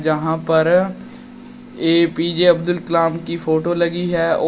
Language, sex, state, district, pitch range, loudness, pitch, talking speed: Hindi, male, Uttar Pradesh, Shamli, 165-180 Hz, -17 LUFS, 170 Hz, 160 wpm